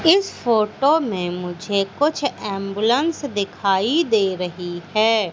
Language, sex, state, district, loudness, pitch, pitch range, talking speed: Hindi, female, Madhya Pradesh, Katni, -20 LUFS, 215 Hz, 190-285 Hz, 115 wpm